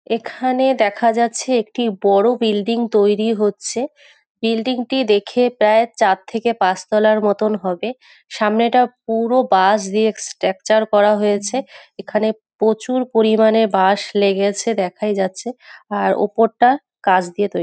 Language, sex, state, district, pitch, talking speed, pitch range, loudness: Bengali, female, West Bengal, North 24 Parganas, 220 Hz, 120 wpm, 205-235 Hz, -17 LUFS